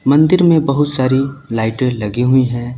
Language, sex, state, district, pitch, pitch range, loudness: Hindi, male, Uttar Pradesh, Lucknow, 130 Hz, 120-145 Hz, -14 LUFS